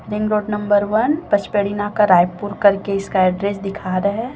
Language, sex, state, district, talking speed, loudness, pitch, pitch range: Hindi, female, Chhattisgarh, Raipur, 180 wpm, -18 LUFS, 205 Hz, 195-210 Hz